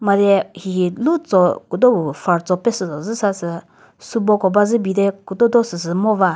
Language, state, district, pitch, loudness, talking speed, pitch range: Chakhesang, Nagaland, Dimapur, 195 Hz, -17 LUFS, 170 wpm, 180-220 Hz